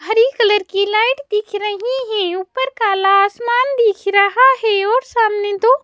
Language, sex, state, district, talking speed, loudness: Hindi, female, Madhya Pradesh, Bhopal, 165 wpm, -15 LUFS